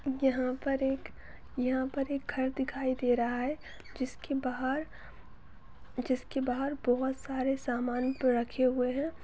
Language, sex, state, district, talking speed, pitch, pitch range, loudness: Hindi, female, Chhattisgarh, Bastar, 135 wpm, 260 Hz, 250-270 Hz, -32 LUFS